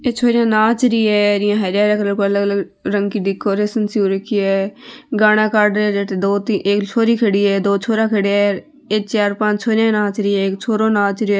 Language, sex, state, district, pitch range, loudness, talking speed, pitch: Marwari, female, Rajasthan, Nagaur, 200-220 Hz, -16 LUFS, 210 wpm, 210 Hz